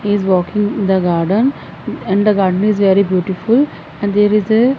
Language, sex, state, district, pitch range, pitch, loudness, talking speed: English, female, Punjab, Fazilka, 190-210 Hz, 205 Hz, -14 LUFS, 200 wpm